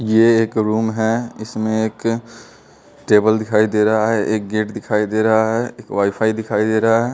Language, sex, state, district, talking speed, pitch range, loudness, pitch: Hindi, male, Bihar, West Champaran, 195 wpm, 110-115 Hz, -17 LUFS, 110 Hz